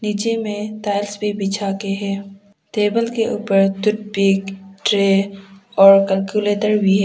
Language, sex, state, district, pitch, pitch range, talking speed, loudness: Hindi, female, Arunachal Pradesh, Papum Pare, 200 Hz, 195-210 Hz, 145 wpm, -18 LUFS